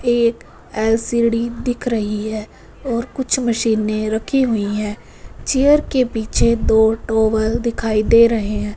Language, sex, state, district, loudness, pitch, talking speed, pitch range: Hindi, female, Punjab, Fazilka, -18 LUFS, 225 Hz, 135 wpm, 215-240 Hz